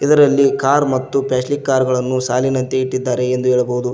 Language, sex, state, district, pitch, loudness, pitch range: Kannada, male, Karnataka, Koppal, 130 Hz, -16 LUFS, 125-135 Hz